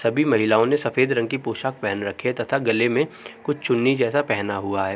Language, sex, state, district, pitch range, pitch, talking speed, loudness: Hindi, male, Uttar Pradesh, Jalaun, 110-135 Hz, 120 Hz, 230 wpm, -22 LUFS